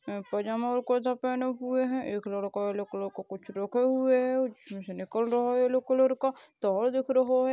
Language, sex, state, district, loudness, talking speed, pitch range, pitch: Hindi, male, Maharashtra, Chandrapur, -29 LUFS, 225 wpm, 205-255 Hz, 250 Hz